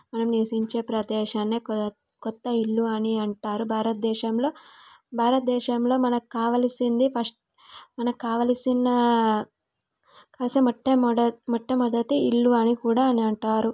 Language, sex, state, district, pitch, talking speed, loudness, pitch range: Telugu, female, Telangana, Karimnagar, 235 Hz, 95 wpm, -24 LUFS, 225-245 Hz